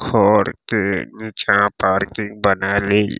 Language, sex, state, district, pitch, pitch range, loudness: Maithili, male, Bihar, Saharsa, 100 Hz, 100-105 Hz, -18 LUFS